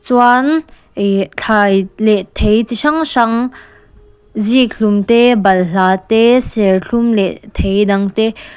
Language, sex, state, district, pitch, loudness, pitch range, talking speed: Mizo, female, Mizoram, Aizawl, 215 Hz, -13 LUFS, 195-235 Hz, 120 wpm